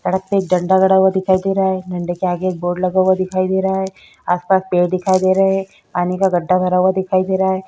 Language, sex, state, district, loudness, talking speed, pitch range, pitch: Hindi, female, Chhattisgarh, Korba, -16 LUFS, 265 wpm, 185-190 Hz, 185 Hz